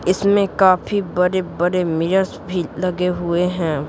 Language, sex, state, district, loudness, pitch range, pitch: Hindi, female, Bihar, Patna, -18 LUFS, 175-190 Hz, 180 Hz